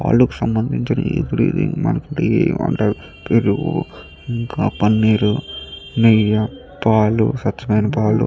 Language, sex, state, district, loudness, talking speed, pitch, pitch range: Telugu, male, Andhra Pradesh, Chittoor, -18 LUFS, 65 wpm, 110 Hz, 105-145 Hz